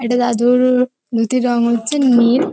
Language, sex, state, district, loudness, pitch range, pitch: Bengali, female, West Bengal, North 24 Parganas, -15 LUFS, 235-255 Hz, 245 Hz